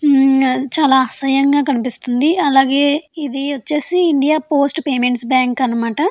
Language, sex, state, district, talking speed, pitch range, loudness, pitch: Telugu, female, Andhra Pradesh, Anantapur, 110 wpm, 260-295 Hz, -15 LUFS, 275 Hz